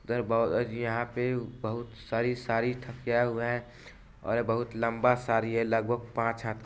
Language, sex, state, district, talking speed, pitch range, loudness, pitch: Hindi, male, Bihar, Vaishali, 170 wpm, 115-120 Hz, -30 LUFS, 120 Hz